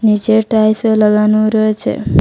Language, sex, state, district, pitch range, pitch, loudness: Bengali, female, Assam, Hailakandi, 215-220 Hz, 215 Hz, -12 LUFS